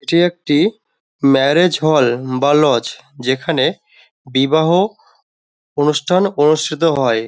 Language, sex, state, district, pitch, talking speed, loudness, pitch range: Bengali, male, West Bengal, Dakshin Dinajpur, 150 Hz, 90 wpm, -15 LUFS, 130-165 Hz